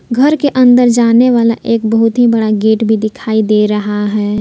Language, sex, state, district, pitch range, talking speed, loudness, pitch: Hindi, female, Jharkhand, Palamu, 215-240 Hz, 205 wpm, -11 LUFS, 225 Hz